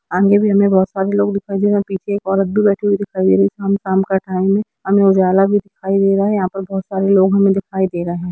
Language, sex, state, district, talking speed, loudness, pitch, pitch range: Hindi, female, Bihar, Jamui, 295 wpm, -15 LUFS, 195 Hz, 190-200 Hz